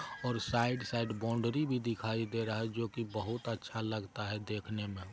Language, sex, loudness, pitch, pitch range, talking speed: Maithili, male, -36 LUFS, 115 Hz, 110-115 Hz, 200 wpm